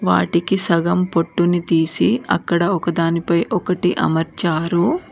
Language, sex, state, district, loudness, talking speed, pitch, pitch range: Telugu, female, Telangana, Mahabubabad, -18 LUFS, 95 wpm, 170 Hz, 165-180 Hz